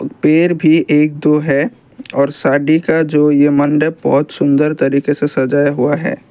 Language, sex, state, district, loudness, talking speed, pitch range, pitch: Hindi, male, Assam, Kamrup Metropolitan, -13 LUFS, 170 wpm, 145-155 Hz, 150 Hz